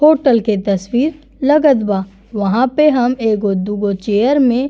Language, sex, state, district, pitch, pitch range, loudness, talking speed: Bhojpuri, female, Uttar Pradesh, Gorakhpur, 235 Hz, 205-275 Hz, -15 LUFS, 165 wpm